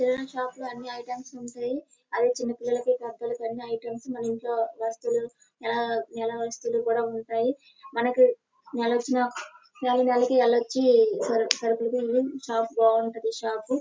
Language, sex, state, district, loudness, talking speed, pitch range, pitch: Telugu, female, Andhra Pradesh, Srikakulam, -26 LUFS, 95 wpm, 230-255 Hz, 240 Hz